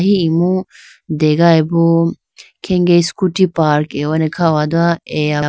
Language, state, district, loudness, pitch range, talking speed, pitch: Idu Mishmi, Arunachal Pradesh, Lower Dibang Valley, -14 LUFS, 155-175 Hz, 110 wpm, 165 Hz